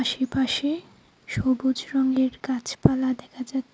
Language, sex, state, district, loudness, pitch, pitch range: Bengali, female, Tripura, Unakoti, -25 LUFS, 260 Hz, 255-265 Hz